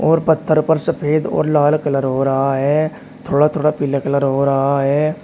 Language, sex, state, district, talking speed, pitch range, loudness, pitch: Hindi, male, Uttar Pradesh, Shamli, 195 wpm, 140-155 Hz, -16 LUFS, 150 Hz